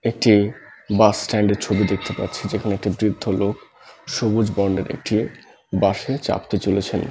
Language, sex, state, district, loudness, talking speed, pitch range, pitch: Bengali, male, West Bengal, Malda, -21 LUFS, 160 wpm, 100-110 Hz, 105 Hz